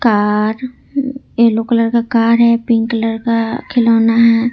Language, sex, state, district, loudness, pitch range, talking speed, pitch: Hindi, female, Jharkhand, Ranchi, -14 LUFS, 225-235 Hz, 145 wpm, 230 Hz